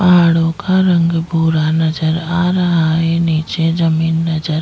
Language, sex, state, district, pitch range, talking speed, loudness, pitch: Hindi, female, Chhattisgarh, Jashpur, 160-170 Hz, 155 wpm, -14 LUFS, 165 Hz